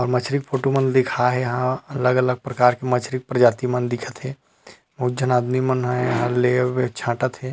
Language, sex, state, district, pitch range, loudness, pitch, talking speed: Chhattisgarhi, male, Chhattisgarh, Rajnandgaon, 125-130 Hz, -21 LUFS, 125 Hz, 215 wpm